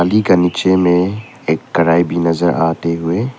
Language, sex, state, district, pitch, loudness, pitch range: Hindi, male, Arunachal Pradesh, Papum Pare, 85 Hz, -15 LUFS, 85-95 Hz